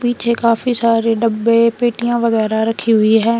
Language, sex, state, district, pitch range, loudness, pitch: Hindi, female, Himachal Pradesh, Shimla, 225-235 Hz, -15 LUFS, 230 Hz